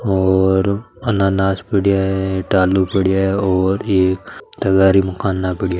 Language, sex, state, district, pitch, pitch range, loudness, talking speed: Marwari, male, Rajasthan, Nagaur, 95 Hz, 95-100 Hz, -16 LUFS, 135 wpm